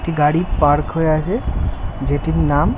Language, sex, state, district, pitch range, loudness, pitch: Bengali, male, West Bengal, Kolkata, 145-165 Hz, -18 LUFS, 150 Hz